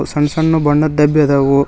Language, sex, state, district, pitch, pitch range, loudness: Kannada, male, Karnataka, Koppal, 150 Hz, 140-155 Hz, -13 LUFS